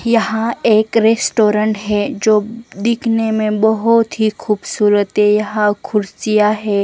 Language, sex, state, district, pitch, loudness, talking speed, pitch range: Hindi, female, Chandigarh, Chandigarh, 215 Hz, -15 LUFS, 125 wpm, 210-225 Hz